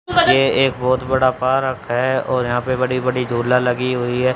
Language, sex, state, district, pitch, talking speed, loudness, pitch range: Hindi, male, Haryana, Rohtak, 130 Hz, 205 wpm, -18 LUFS, 125-130 Hz